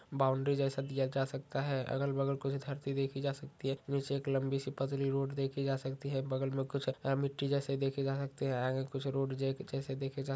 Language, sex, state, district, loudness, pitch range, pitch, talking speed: Hindi, male, Chhattisgarh, Raigarh, -36 LUFS, 135-140 Hz, 135 Hz, 230 wpm